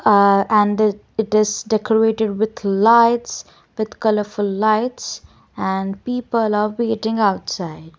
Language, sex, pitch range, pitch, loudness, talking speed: English, female, 205-225 Hz, 215 Hz, -18 LUFS, 115 wpm